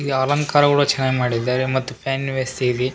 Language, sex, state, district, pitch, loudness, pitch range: Kannada, male, Karnataka, Raichur, 130 Hz, -19 LUFS, 130-140 Hz